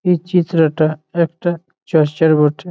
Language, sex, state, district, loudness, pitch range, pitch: Bengali, male, West Bengal, Malda, -16 LUFS, 155-175 Hz, 165 Hz